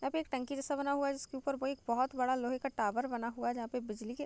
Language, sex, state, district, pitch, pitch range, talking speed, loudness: Hindi, female, Bihar, Gopalganj, 265 Hz, 240-275 Hz, 350 wpm, -36 LUFS